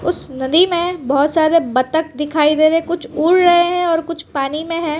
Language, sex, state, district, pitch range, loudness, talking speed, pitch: Hindi, female, Gujarat, Valsad, 295-340 Hz, -16 LUFS, 230 wpm, 320 Hz